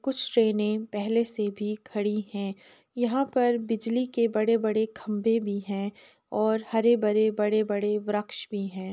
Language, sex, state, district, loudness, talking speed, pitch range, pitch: Hindi, female, Uttar Pradesh, Jalaun, -27 LUFS, 140 wpm, 210-230 Hz, 215 Hz